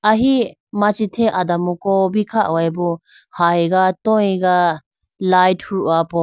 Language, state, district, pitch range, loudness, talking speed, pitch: Idu Mishmi, Arunachal Pradesh, Lower Dibang Valley, 170-210 Hz, -17 LUFS, 125 wpm, 185 Hz